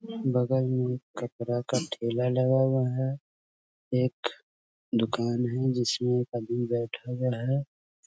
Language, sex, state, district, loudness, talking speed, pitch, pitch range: Hindi, male, Bihar, Muzaffarpur, -29 LUFS, 135 wpm, 125 Hz, 120-130 Hz